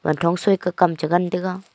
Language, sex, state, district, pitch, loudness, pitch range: Wancho, female, Arunachal Pradesh, Longding, 180 Hz, -20 LUFS, 170-185 Hz